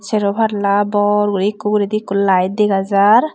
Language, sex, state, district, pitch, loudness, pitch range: Chakma, female, Tripura, Unakoti, 205 Hz, -15 LUFS, 200-215 Hz